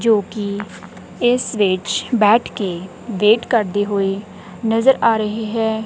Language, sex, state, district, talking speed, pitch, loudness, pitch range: Punjabi, female, Punjab, Kapurthala, 135 wpm, 215 Hz, -18 LUFS, 200-230 Hz